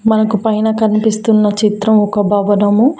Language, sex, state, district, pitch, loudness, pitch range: Telugu, female, Telangana, Mahabubabad, 215 Hz, -13 LUFS, 205-220 Hz